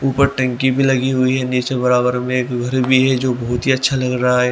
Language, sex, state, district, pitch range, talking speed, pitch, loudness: Hindi, male, Haryana, Rohtak, 125-130 Hz, 265 wpm, 130 Hz, -16 LUFS